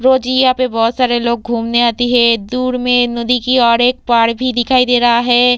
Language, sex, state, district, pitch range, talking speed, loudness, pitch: Hindi, female, Uttar Pradesh, Varanasi, 235-255 Hz, 225 wpm, -13 LUFS, 245 Hz